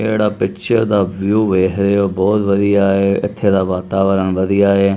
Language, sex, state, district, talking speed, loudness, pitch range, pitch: Punjabi, male, Punjab, Kapurthala, 180 wpm, -15 LUFS, 95-100 Hz, 100 Hz